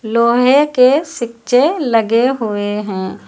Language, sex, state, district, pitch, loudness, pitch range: Hindi, female, Uttar Pradesh, Lucknow, 235 Hz, -14 LUFS, 225-260 Hz